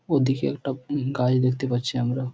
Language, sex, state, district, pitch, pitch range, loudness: Bengali, male, West Bengal, Purulia, 130 Hz, 125-135 Hz, -25 LUFS